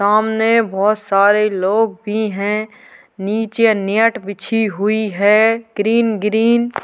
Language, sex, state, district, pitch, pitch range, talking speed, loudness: Hindi, female, Uttar Pradesh, Jalaun, 215 Hz, 205-225 Hz, 125 wpm, -16 LUFS